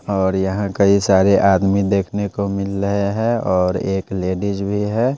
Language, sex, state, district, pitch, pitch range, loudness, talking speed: Hindi, male, Punjab, Pathankot, 100 Hz, 95-100 Hz, -18 LUFS, 175 wpm